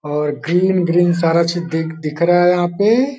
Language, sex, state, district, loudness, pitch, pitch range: Hindi, male, Uttar Pradesh, Deoria, -16 LUFS, 175 Hz, 160-180 Hz